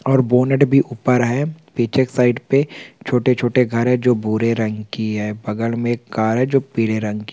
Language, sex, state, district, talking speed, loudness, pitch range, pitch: Hindi, male, Chhattisgarh, Raigarh, 205 wpm, -18 LUFS, 110-130 Hz, 120 Hz